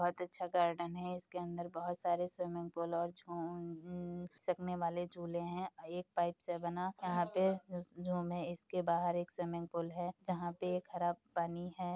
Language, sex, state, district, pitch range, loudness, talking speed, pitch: Hindi, female, Uttar Pradesh, Hamirpur, 170-180 Hz, -40 LUFS, 180 wpm, 175 Hz